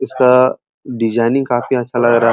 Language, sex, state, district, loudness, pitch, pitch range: Hindi, male, Uttar Pradesh, Muzaffarnagar, -14 LUFS, 120 Hz, 120-130 Hz